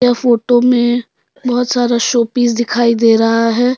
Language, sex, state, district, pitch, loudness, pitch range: Hindi, female, Jharkhand, Deoghar, 240 Hz, -13 LUFS, 235-245 Hz